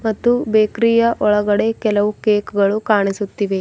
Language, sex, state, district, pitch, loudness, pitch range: Kannada, female, Karnataka, Bidar, 210 Hz, -17 LUFS, 205-225 Hz